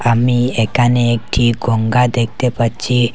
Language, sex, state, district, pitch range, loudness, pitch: Bengali, male, Assam, Hailakandi, 115-125 Hz, -15 LUFS, 120 Hz